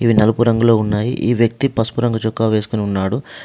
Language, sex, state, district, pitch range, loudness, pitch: Telugu, male, Telangana, Adilabad, 110-120 Hz, -17 LUFS, 115 Hz